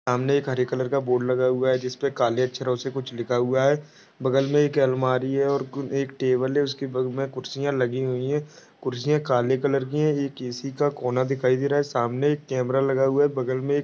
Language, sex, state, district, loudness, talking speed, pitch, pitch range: Hindi, male, Maharashtra, Pune, -24 LUFS, 235 wpm, 135 Hz, 130-140 Hz